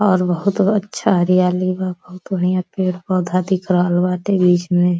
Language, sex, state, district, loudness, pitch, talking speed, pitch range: Bhojpuri, female, Uttar Pradesh, Deoria, -17 LUFS, 185 Hz, 170 wpm, 180-190 Hz